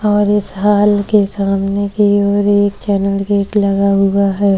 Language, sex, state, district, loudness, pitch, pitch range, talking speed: Hindi, female, Maharashtra, Chandrapur, -14 LUFS, 200 Hz, 195-205 Hz, 170 wpm